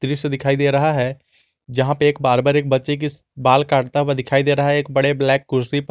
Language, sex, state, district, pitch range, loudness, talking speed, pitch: Hindi, male, Jharkhand, Garhwa, 135-145 Hz, -18 LUFS, 245 wpm, 140 Hz